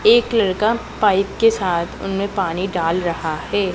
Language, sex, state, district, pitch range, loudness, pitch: Hindi, female, Punjab, Pathankot, 175-220 Hz, -19 LUFS, 195 Hz